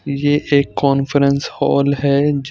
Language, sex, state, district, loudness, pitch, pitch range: Hindi, male, Punjab, Fazilka, -16 LUFS, 140 Hz, 140-145 Hz